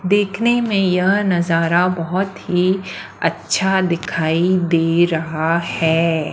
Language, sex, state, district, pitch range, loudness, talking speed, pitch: Hindi, female, Maharashtra, Washim, 165-190 Hz, -17 LUFS, 105 wpm, 180 Hz